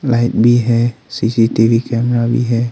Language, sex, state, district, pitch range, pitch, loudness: Hindi, male, Arunachal Pradesh, Longding, 115-120 Hz, 120 Hz, -14 LUFS